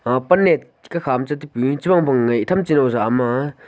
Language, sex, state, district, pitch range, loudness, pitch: Wancho, male, Arunachal Pradesh, Longding, 125-165 Hz, -18 LUFS, 135 Hz